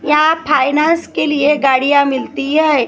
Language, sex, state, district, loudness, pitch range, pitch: Hindi, female, Maharashtra, Gondia, -13 LUFS, 275-310 Hz, 295 Hz